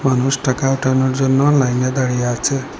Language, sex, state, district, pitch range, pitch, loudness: Bengali, male, Assam, Hailakandi, 130-135 Hz, 130 Hz, -16 LUFS